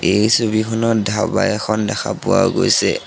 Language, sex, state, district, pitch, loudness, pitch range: Assamese, male, Assam, Sonitpur, 110 Hz, -17 LUFS, 105-115 Hz